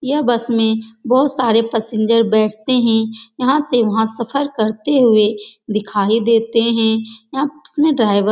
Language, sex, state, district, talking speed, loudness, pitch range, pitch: Hindi, female, Uttar Pradesh, Etah, 150 wpm, -16 LUFS, 220-255 Hz, 230 Hz